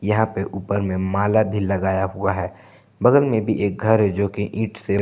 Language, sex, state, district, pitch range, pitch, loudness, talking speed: Hindi, male, Jharkhand, Palamu, 95-110 Hz, 100 Hz, -21 LUFS, 225 wpm